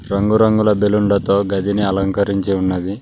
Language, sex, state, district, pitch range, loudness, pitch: Telugu, male, Telangana, Mahabubabad, 95-105 Hz, -16 LUFS, 100 Hz